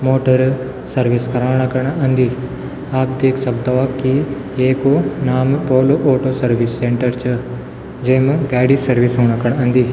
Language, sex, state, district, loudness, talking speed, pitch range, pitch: Garhwali, male, Uttarakhand, Tehri Garhwal, -16 LUFS, 140 wpm, 125-130 Hz, 130 Hz